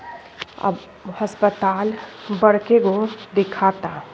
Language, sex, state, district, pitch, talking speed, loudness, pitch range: Bhojpuri, female, Uttar Pradesh, Ghazipur, 205 Hz, 85 wpm, -20 LUFS, 195-215 Hz